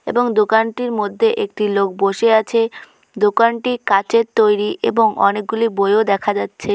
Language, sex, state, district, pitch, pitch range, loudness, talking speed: Bengali, female, West Bengal, Jhargram, 220 Hz, 205-230 Hz, -16 LUFS, 135 wpm